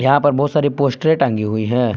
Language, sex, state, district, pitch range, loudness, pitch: Hindi, male, Jharkhand, Palamu, 120-145 Hz, -17 LUFS, 135 Hz